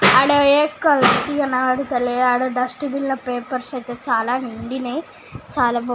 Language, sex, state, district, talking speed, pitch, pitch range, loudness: Telugu, female, Telangana, Nalgonda, 100 wpm, 255 Hz, 245-280 Hz, -19 LUFS